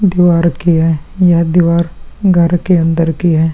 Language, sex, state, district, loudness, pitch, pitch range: Hindi, male, Bihar, Vaishali, -12 LUFS, 170 Hz, 165-175 Hz